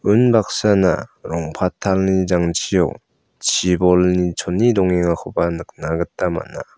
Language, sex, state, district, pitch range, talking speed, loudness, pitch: Garo, male, Meghalaya, South Garo Hills, 90-100 Hz, 80 wpm, -18 LUFS, 90 Hz